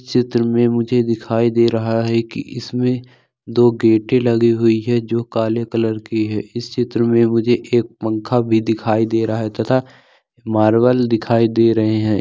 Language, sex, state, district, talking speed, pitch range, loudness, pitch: Angika, male, Bihar, Madhepura, 175 wpm, 110-120 Hz, -17 LUFS, 115 Hz